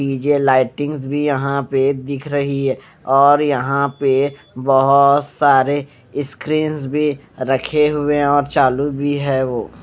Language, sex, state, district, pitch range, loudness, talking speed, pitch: Hindi, male, Punjab, Fazilka, 135-145 Hz, -17 LUFS, 140 wpm, 140 Hz